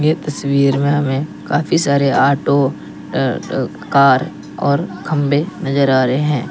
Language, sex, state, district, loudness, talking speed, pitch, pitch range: Hindi, male, Uttar Pradesh, Lalitpur, -16 LUFS, 145 wpm, 140 Hz, 140-150 Hz